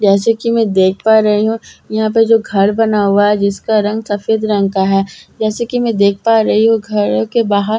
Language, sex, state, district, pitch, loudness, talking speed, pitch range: Hindi, female, Bihar, Katihar, 215 Hz, -13 LUFS, 240 wpm, 200-225 Hz